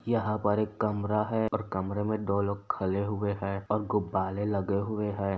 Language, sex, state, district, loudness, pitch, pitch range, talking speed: Hindi, male, Uttar Pradesh, Etah, -30 LUFS, 105 Hz, 100-105 Hz, 200 wpm